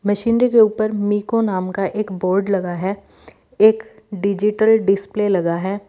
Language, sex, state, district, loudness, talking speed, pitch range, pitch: Hindi, female, Uttar Pradesh, Lalitpur, -18 LUFS, 155 wpm, 195-215 Hz, 205 Hz